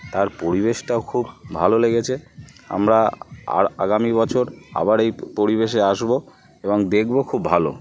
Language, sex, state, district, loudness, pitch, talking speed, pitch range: Bengali, male, West Bengal, North 24 Parganas, -20 LUFS, 115 Hz, 130 wpm, 105-125 Hz